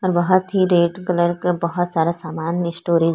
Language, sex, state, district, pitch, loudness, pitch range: Hindi, female, Chhattisgarh, Korba, 175 Hz, -19 LUFS, 170-180 Hz